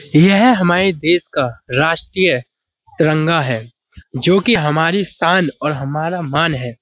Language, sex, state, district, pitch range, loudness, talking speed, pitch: Hindi, male, Uttar Pradesh, Budaun, 140-175 Hz, -15 LUFS, 125 wpm, 160 Hz